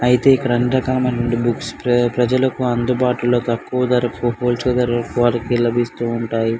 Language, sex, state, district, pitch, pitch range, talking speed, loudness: Telugu, male, Andhra Pradesh, Anantapur, 120 Hz, 120-125 Hz, 120 wpm, -18 LUFS